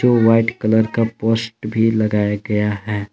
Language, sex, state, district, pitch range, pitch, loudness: Hindi, male, Jharkhand, Palamu, 105-115 Hz, 110 Hz, -18 LUFS